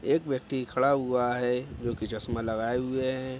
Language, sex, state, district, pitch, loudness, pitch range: Hindi, male, Bihar, Araria, 125 Hz, -29 LUFS, 120-130 Hz